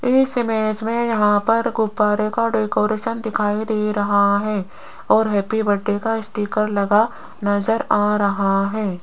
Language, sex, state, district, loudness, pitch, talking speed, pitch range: Hindi, female, Rajasthan, Jaipur, -19 LUFS, 215 Hz, 145 wpm, 205-225 Hz